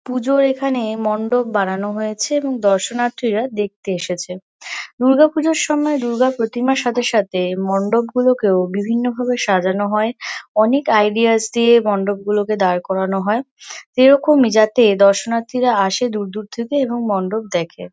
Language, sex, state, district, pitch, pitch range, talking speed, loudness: Bengali, female, West Bengal, Kolkata, 220 Hz, 200-250 Hz, 125 wpm, -17 LUFS